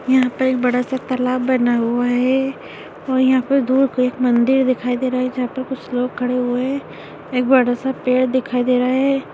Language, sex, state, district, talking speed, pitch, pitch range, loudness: Hindi, female, Bihar, Madhepura, 225 wpm, 255 Hz, 250-260 Hz, -18 LUFS